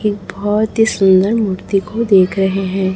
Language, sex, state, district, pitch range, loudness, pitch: Hindi, female, Chhattisgarh, Raipur, 190-215 Hz, -14 LUFS, 195 Hz